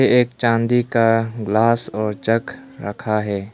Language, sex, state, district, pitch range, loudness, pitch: Hindi, male, Arunachal Pradesh, Lower Dibang Valley, 110-120 Hz, -19 LUFS, 115 Hz